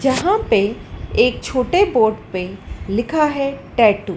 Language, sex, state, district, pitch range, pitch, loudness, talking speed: Hindi, female, Madhya Pradesh, Dhar, 205-300 Hz, 245 Hz, -18 LUFS, 145 wpm